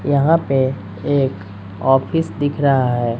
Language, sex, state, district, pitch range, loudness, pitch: Hindi, female, Bihar, West Champaran, 115-145 Hz, -18 LUFS, 135 Hz